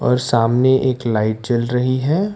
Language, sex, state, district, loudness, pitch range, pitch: Hindi, male, Karnataka, Bangalore, -17 LUFS, 115-130 Hz, 125 Hz